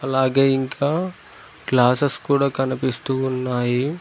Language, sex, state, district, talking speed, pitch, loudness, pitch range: Telugu, male, Telangana, Mahabubabad, 90 wpm, 130 Hz, -20 LUFS, 130-140 Hz